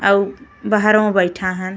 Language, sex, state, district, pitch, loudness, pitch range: Bhojpuri, female, Uttar Pradesh, Gorakhpur, 200 Hz, -17 LUFS, 185-210 Hz